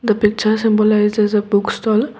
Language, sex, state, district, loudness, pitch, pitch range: English, female, Assam, Kamrup Metropolitan, -16 LUFS, 215 Hz, 210-220 Hz